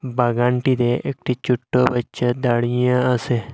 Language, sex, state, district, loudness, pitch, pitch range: Bengali, male, Assam, Hailakandi, -20 LUFS, 125 Hz, 120-125 Hz